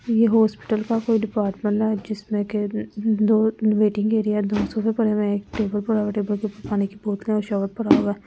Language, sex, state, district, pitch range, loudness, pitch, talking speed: Hindi, female, Delhi, New Delhi, 205-220 Hz, -22 LUFS, 215 Hz, 205 wpm